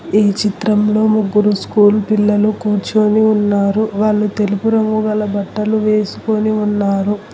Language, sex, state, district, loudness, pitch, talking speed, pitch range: Telugu, female, Telangana, Hyderabad, -15 LUFS, 210 Hz, 115 wpm, 205-215 Hz